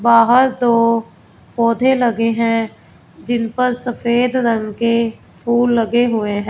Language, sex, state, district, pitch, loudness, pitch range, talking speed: Hindi, female, Punjab, Fazilka, 235 Hz, -16 LUFS, 230-245 Hz, 120 wpm